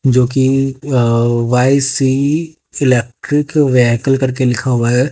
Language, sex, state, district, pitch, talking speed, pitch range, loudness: Hindi, male, Haryana, Jhajjar, 130 Hz, 115 wpm, 125-140 Hz, -14 LUFS